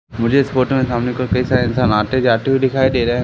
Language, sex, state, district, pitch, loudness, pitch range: Hindi, male, Madhya Pradesh, Katni, 125 Hz, -16 LUFS, 120-130 Hz